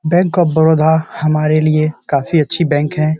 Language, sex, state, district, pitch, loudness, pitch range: Hindi, male, Bihar, Samastipur, 155 Hz, -14 LUFS, 155-160 Hz